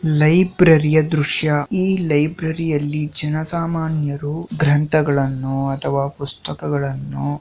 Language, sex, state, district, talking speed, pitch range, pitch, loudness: Kannada, male, Karnataka, Shimoga, 75 wpm, 140-160 Hz, 150 Hz, -19 LUFS